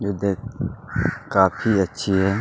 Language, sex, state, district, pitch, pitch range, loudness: Hindi, male, Chhattisgarh, Kabirdham, 100 Hz, 95-100 Hz, -22 LUFS